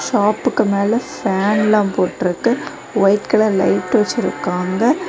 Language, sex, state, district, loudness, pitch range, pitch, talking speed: Tamil, female, Tamil Nadu, Kanyakumari, -17 LUFS, 195-235 Hz, 210 Hz, 95 wpm